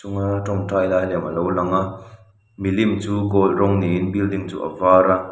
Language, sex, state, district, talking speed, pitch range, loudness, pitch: Mizo, male, Mizoram, Aizawl, 170 wpm, 95-100 Hz, -20 LUFS, 95 Hz